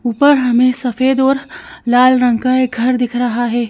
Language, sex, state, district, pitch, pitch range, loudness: Hindi, female, Madhya Pradesh, Bhopal, 250 Hz, 240-255 Hz, -14 LUFS